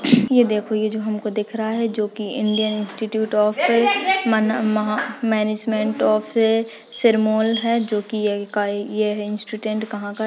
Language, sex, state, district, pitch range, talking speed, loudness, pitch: Hindi, female, Uttarakhand, Tehri Garhwal, 210-225 Hz, 150 wpm, -20 LUFS, 215 Hz